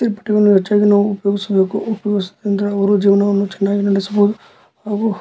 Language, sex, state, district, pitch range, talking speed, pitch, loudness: Kannada, male, Karnataka, Dharwad, 200-210 Hz, 105 wpm, 205 Hz, -16 LUFS